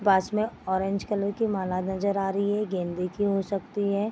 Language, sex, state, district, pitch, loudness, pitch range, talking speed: Hindi, female, Bihar, Vaishali, 200 Hz, -27 LUFS, 190-205 Hz, 220 wpm